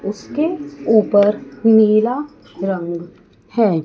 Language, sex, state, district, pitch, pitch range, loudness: Hindi, female, Chandigarh, Chandigarh, 215 Hz, 200-245 Hz, -17 LUFS